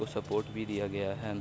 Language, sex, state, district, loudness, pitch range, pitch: Hindi, male, Bihar, Begusarai, -35 LUFS, 100-110 Hz, 105 Hz